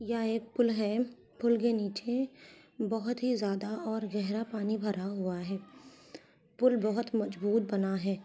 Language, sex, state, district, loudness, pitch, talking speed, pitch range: Hindi, female, Bihar, Saharsa, -32 LUFS, 220 Hz, 155 wpm, 205-235 Hz